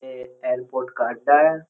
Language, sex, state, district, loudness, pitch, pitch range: Hindi, male, Uttar Pradesh, Jyotiba Phule Nagar, -21 LUFS, 130 Hz, 125-155 Hz